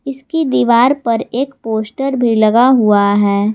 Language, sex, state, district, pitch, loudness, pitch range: Hindi, female, Jharkhand, Garhwa, 235 Hz, -13 LUFS, 215-270 Hz